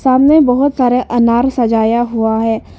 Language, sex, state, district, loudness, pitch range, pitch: Hindi, female, Arunachal Pradesh, Lower Dibang Valley, -12 LUFS, 225-260 Hz, 240 Hz